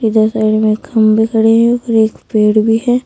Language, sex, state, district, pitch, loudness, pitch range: Hindi, female, Uttar Pradesh, Saharanpur, 220 Hz, -12 LUFS, 215-225 Hz